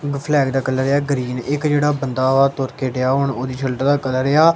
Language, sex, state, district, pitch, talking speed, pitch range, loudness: Punjabi, male, Punjab, Kapurthala, 135 Hz, 210 wpm, 130-145 Hz, -18 LUFS